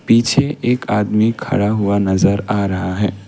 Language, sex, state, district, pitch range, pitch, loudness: Hindi, male, Assam, Kamrup Metropolitan, 100-115 Hz, 105 Hz, -16 LUFS